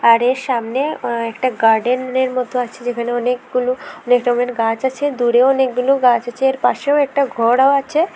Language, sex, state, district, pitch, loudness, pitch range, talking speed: Bengali, female, Tripura, West Tripura, 250 Hz, -17 LUFS, 240-265 Hz, 175 wpm